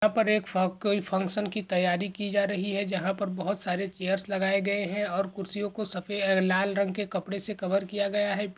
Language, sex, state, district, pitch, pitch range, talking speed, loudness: Hindi, male, Bihar, Begusarai, 200 Hz, 190-205 Hz, 245 wpm, -28 LUFS